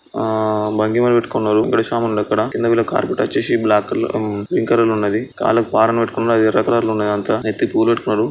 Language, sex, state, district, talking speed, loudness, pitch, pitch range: Telugu, male, Andhra Pradesh, Srikakulam, 175 wpm, -17 LUFS, 110 Hz, 105-115 Hz